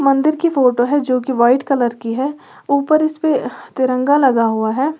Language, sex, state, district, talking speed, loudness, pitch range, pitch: Hindi, female, Uttar Pradesh, Lalitpur, 190 wpm, -16 LUFS, 245-290 Hz, 270 Hz